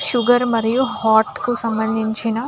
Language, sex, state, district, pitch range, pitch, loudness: Telugu, female, Andhra Pradesh, Anantapur, 220-245 Hz, 230 Hz, -18 LUFS